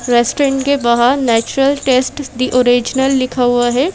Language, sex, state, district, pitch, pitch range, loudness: Hindi, female, Madhya Pradesh, Bhopal, 255 Hz, 245-270 Hz, -14 LUFS